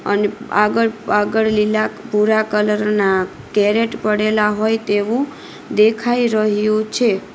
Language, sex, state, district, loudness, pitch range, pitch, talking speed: Gujarati, female, Gujarat, Valsad, -17 LUFS, 210-220 Hz, 215 Hz, 105 wpm